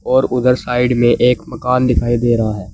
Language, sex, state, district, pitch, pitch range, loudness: Hindi, male, Uttar Pradesh, Saharanpur, 125 Hz, 115-125 Hz, -15 LUFS